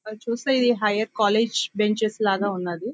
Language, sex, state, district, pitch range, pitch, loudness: Telugu, female, Andhra Pradesh, Visakhapatnam, 210-230 Hz, 215 Hz, -23 LUFS